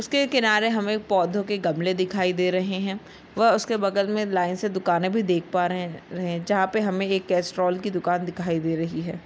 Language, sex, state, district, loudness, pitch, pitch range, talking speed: Hindi, female, Maharashtra, Sindhudurg, -24 LUFS, 185 Hz, 180-205 Hz, 220 wpm